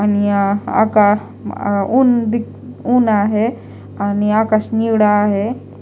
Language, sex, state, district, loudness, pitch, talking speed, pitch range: Marathi, female, Maharashtra, Mumbai Suburban, -15 LUFS, 215 Hz, 115 wpm, 205-230 Hz